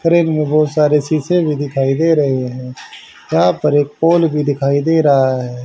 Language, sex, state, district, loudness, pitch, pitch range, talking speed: Hindi, male, Haryana, Charkhi Dadri, -14 LUFS, 150 Hz, 135-160 Hz, 190 wpm